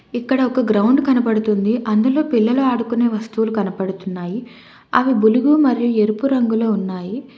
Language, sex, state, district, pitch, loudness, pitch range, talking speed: Telugu, female, Telangana, Hyderabad, 230 Hz, -17 LUFS, 215-255 Hz, 120 wpm